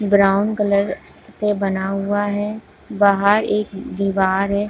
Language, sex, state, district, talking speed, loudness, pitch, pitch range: Hindi, female, Jharkhand, Sahebganj, 130 wpm, -19 LUFS, 200 Hz, 195-205 Hz